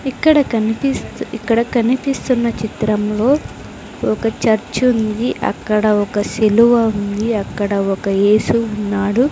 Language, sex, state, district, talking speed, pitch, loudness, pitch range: Telugu, female, Andhra Pradesh, Sri Satya Sai, 95 wpm, 220 Hz, -16 LUFS, 210-240 Hz